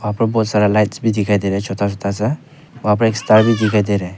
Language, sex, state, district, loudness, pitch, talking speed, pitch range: Hindi, male, Arunachal Pradesh, Papum Pare, -16 LUFS, 105 Hz, 300 wpm, 100-115 Hz